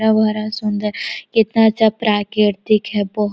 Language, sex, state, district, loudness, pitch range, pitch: Hindi, female, Chhattisgarh, Korba, -17 LUFS, 210-220 Hz, 215 Hz